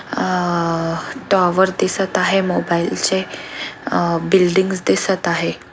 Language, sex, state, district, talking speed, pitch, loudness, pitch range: Marathi, female, Maharashtra, Aurangabad, 105 wpm, 185 Hz, -18 LUFS, 170-190 Hz